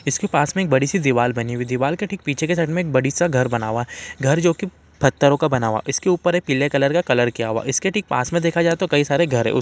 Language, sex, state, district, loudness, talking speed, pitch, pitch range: Hindi, male, Uttarakhand, Uttarkashi, -19 LUFS, 325 wpm, 140 Hz, 125-175 Hz